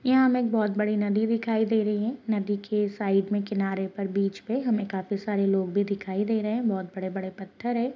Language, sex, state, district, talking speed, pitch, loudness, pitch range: Hindi, female, Uttarakhand, Uttarkashi, 225 wpm, 205 Hz, -27 LUFS, 195-225 Hz